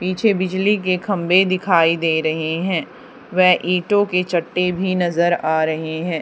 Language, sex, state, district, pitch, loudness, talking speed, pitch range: Hindi, female, Haryana, Charkhi Dadri, 180 Hz, -18 LUFS, 165 wpm, 170-185 Hz